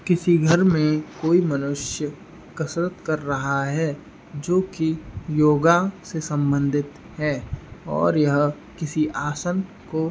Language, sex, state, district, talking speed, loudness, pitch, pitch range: Hindi, male, Uttar Pradesh, Etah, 125 wpm, -22 LUFS, 155 Hz, 145-170 Hz